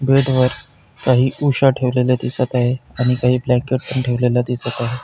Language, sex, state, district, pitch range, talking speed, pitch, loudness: Marathi, male, Maharashtra, Pune, 125-130 Hz, 165 wpm, 125 Hz, -18 LUFS